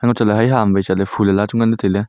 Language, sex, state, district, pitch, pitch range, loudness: Wancho, male, Arunachal Pradesh, Longding, 105 Hz, 100-115 Hz, -16 LUFS